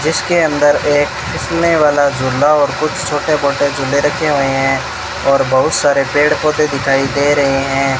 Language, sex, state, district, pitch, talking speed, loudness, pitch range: Hindi, male, Rajasthan, Bikaner, 145 Hz, 165 wpm, -13 LUFS, 135-150 Hz